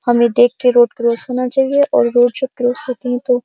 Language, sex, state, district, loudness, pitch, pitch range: Hindi, female, Uttar Pradesh, Jyotiba Phule Nagar, -14 LUFS, 245 Hz, 240-255 Hz